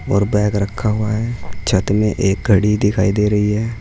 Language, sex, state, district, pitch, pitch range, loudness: Hindi, male, Uttar Pradesh, Saharanpur, 105 Hz, 100-105 Hz, -17 LUFS